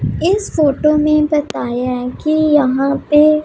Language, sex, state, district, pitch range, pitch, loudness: Hindi, female, Punjab, Pathankot, 275-305 Hz, 300 Hz, -15 LUFS